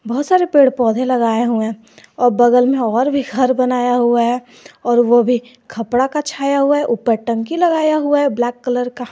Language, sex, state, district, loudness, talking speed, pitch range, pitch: Hindi, male, Jharkhand, Garhwa, -15 LUFS, 210 wpm, 240-275 Hz, 245 Hz